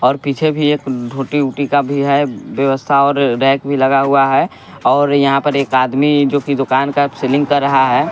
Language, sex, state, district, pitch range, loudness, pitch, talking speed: Hindi, male, Bihar, West Champaran, 135-145 Hz, -14 LUFS, 140 Hz, 215 wpm